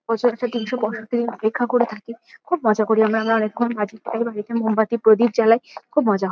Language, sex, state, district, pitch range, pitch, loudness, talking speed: Bengali, female, West Bengal, Kolkata, 220-240 Hz, 230 Hz, -20 LUFS, 230 wpm